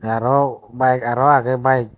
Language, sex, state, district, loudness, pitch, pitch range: Chakma, male, Tripura, Dhalai, -17 LUFS, 130 Hz, 120-135 Hz